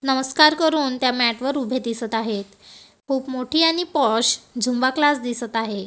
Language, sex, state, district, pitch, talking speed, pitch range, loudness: Marathi, female, Maharashtra, Gondia, 255 Hz, 165 wpm, 230-285 Hz, -20 LUFS